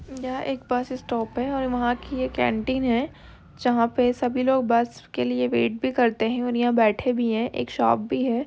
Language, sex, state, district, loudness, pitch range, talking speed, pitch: Hindi, female, Uttar Pradesh, Hamirpur, -24 LUFS, 225-255 Hz, 235 wpm, 240 Hz